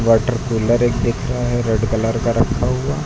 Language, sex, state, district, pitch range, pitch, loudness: Hindi, male, Uttar Pradesh, Lucknow, 115-125 Hz, 120 Hz, -18 LUFS